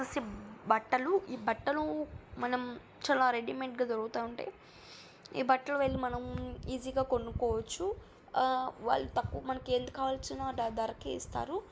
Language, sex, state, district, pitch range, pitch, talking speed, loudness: Telugu, female, Andhra Pradesh, Guntur, 230-265 Hz, 255 Hz, 130 wpm, -34 LUFS